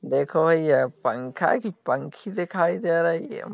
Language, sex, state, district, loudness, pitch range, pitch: Hindi, male, Uttar Pradesh, Jalaun, -24 LUFS, 160-175 Hz, 165 Hz